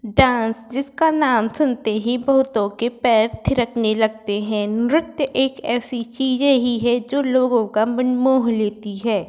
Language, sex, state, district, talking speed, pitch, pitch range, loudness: Hindi, female, Uttar Pradesh, Varanasi, 150 wpm, 240 Hz, 220-265 Hz, -19 LUFS